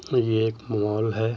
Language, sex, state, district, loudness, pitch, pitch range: Hindi, male, Uttar Pradesh, Jyotiba Phule Nagar, -25 LUFS, 110 Hz, 110-115 Hz